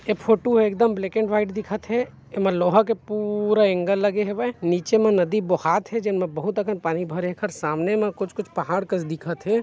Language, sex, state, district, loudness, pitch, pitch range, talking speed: Chhattisgarhi, male, Chhattisgarh, Bilaspur, -23 LUFS, 210 Hz, 180-215 Hz, 225 wpm